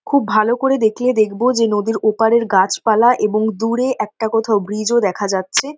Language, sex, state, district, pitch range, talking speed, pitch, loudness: Bengali, female, West Bengal, North 24 Parganas, 210-240 Hz, 175 wpm, 220 Hz, -16 LUFS